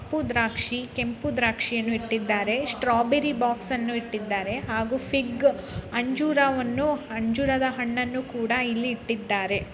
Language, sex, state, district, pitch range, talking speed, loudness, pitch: Kannada, female, Karnataka, Chamarajanagar, 225-260 Hz, 100 wpm, -25 LUFS, 240 Hz